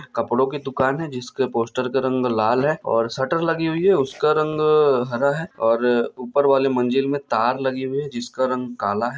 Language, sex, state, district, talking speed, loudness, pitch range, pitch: Hindi, male, Bihar, Darbhanga, 210 wpm, -21 LUFS, 125-145 Hz, 130 Hz